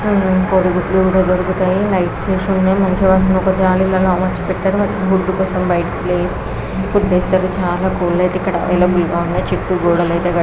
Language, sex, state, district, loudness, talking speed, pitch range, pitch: Telugu, female, Andhra Pradesh, Krishna, -15 LUFS, 65 wpm, 180-190 Hz, 185 Hz